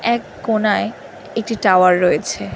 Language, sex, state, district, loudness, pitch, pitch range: Bengali, female, West Bengal, North 24 Parganas, -17 LUFS, 210 Hz, 180-225 Hz